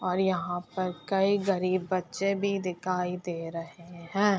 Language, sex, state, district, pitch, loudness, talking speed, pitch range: Hindi, female, Uttar Pradesh, Etah, 185 Hz, -29 LUFS, 150 wpm, 175-195 Hz